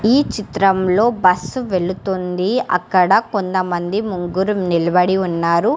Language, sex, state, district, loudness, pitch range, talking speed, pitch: Telugu, female, Telangana, Hyderabad, -17 LUFS, 180-205 Hz, 95 wpm, 185 Hz